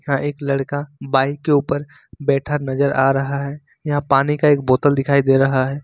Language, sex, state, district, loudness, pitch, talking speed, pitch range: Hindi, male, Jharkhand, Ranchi, -18 LUFS, 140 Hz, 195 wpm, 135-145 Hz